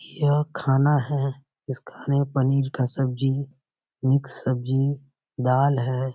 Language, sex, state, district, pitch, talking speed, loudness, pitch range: Hindi, male, Bihar, Muzaffarpur, 135 Hz, 125 wpm, -24 LUFS, 130-140 Hz